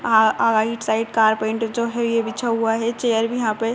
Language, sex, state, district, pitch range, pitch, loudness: Hindi, female, Uttar Pradesh, Budaun, 220-235 Hz, 225 Hz, -20 LUFS